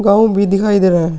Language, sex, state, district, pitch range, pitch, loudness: Hindi, male, Uttar Pradesh, Hamirpur, 185-205 Hz, 200 Hz, -13 LUFS